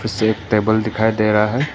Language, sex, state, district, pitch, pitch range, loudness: Hindi, male, Arunachal Pradesh, Papum Pare, 110 Hz, 105-110 Hz, -17 LUFS